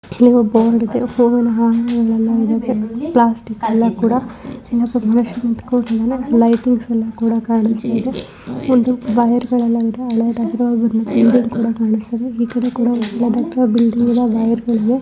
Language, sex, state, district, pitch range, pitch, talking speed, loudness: Kannada, female, Karnataka, Belgaum, 230-245 Hz, 235 Hz, 110 wpm, -16 LUFS